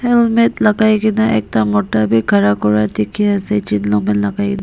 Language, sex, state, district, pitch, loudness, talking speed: Nagamese, female, Nagaland, Dimapur, 110 Hz, -14 LUFS, 180 wpm